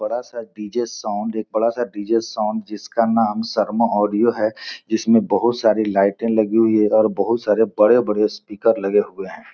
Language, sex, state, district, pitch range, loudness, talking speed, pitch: Hindi, male, Bihar, Gopalganj, 105-115 Hz, -19 LUFS, 180 wpm, 110 Hz